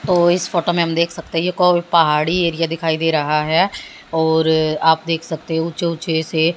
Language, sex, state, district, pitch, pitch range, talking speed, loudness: Hindi, female, Haryana, Jhajjar, 165 Hz, 160-170 Hz, 220 wpm, -17 LUFS